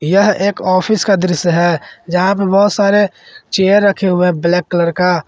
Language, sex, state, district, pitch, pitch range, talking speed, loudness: Hindi, male, Jharkhand, Ranchi, 190 Hz, 180-200 Hz, 195 wpm, -13 LUFS